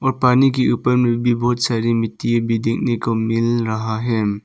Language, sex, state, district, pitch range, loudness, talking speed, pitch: Hindi, male, Arunachal Pradesh, Papum Pare, 115-120 Hz, -18 LUFS, 190 wpm, 115 Hz